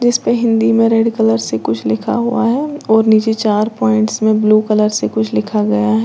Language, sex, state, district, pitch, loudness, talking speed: Hindi, female, Uttar Pradesh, Lalitpur, 215 Hz, -14 LUFS, 220 wpm